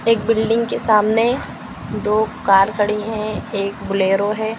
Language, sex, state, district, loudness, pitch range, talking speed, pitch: Hindi, female, Maharashtra, Washim, -18 LUFS, 205-225 Hz, 145 wpm, 215 Hz